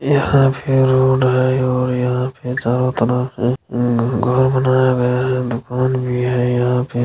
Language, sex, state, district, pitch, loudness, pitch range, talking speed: Maithili, male, Bihar, Supaul, 125 Hz, -17 LUFS, 125-130 Hz, 180 wpm